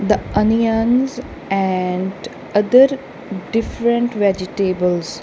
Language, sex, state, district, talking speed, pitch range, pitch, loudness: English, female, Punjab, Kapurthala, 70 wpm, 190-235 Hz, 210 Hz, -17 LUFS